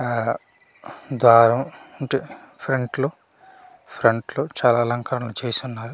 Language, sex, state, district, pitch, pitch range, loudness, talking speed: Telugu, male, Andhra Pradesh, Manyam, 120 Hz, 115-130 Hz, -21 LUFS, 120 wpm